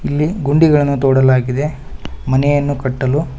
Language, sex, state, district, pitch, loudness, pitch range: Kannada, male, Karnataka, Bangalore, 140 Hz, -15 LUFS, 130-145 Hz